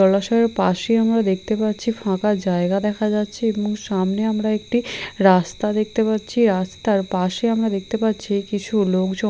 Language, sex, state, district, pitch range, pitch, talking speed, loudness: Bengali, female, Odisha, Khordha, 195-220 Hz, 210 Hz, 155 wpm, -20 LUFS